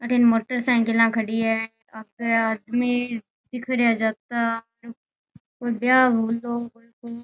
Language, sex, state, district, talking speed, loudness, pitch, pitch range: Rajasthani, female, Rajasthan, Nagaur, 125 wpm, -22 LUFS, 230 Hz, 225-240 Hz